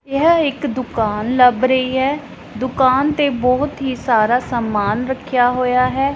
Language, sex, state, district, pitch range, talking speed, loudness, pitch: Punjabi, female, Punjab, Pathankot, 245-275 Hz, 145 wpm, -17 LUFS, 255 Hz